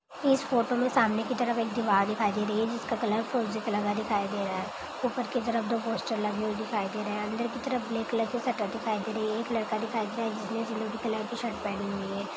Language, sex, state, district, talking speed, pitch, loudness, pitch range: Hindi, female, Bihar, Saharsa, 275 wpm, 225 Hz, -30 LUFS, 210-235 Hz